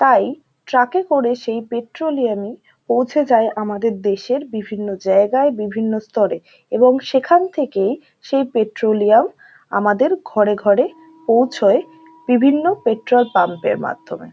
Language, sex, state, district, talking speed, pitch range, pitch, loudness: Bengali, female, West Bengal, North 24 Parganas, 125 wpm, 215-290 Hz, 245 Hz, -17 LUFS